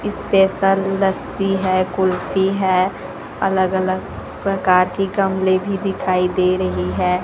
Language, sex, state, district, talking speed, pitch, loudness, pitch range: Hindi, female, Chhattisgarh, Raipur, 125 wpm, 190 Hz, -18 LUFS, 185-195 Hz